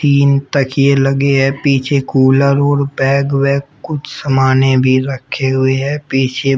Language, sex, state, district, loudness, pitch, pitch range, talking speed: Hindi, female, Uttar Pradesh, Shamli, -13 LUFS, 140 Hz, 135-140 Hz, 145 wpm